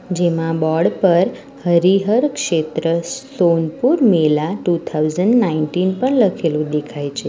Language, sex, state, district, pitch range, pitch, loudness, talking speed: Gujarati, female, Gujarat, Valsad, 160-200 Hz, 170 Hz, -17 LUFS, 115 wpm